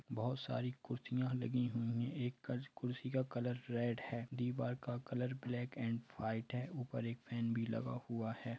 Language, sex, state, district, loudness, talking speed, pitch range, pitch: Hindi, male, Jharkhand, Sahebganj, -42 LUFS, 190 wpm, 115-125 Hz, 120 Hz